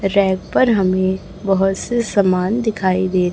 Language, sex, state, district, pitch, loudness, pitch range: Hindi, female, Chhattisgarh, Raipur, 195 Hz, -17 LUFS, 185-200 Hz